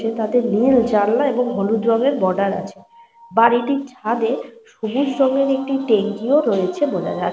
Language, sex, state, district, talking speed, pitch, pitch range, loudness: Bengali, female, Jharkhand, Sahebganj, 195 wpm, 235 Hz, 215-270 Hz, -18 LUFS